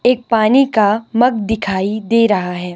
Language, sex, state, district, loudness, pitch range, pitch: Hindi, female, Himachal Pradesh, Shimla, -15 LUFS, 205-235 Hz, 220 Hz